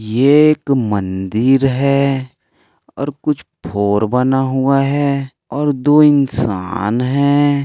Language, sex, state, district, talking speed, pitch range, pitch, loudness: Hindi, male, Maharashtra, Aurangabad, 110 wpm, 120-140 Hz, 135 Hz, -15 LUFS